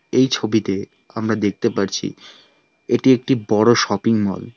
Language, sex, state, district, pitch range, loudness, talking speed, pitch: Bengali, male, West Bengal, Alipurduar, 100-120 Hz, -18 LUFS, 145 wpm, 110 Hz